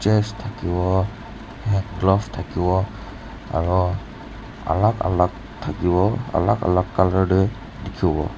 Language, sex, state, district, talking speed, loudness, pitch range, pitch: Nagamese, male, Nagaland, Dimapur, 120 wpm, -22 LUFS, 90-105 Hz, 95 Hz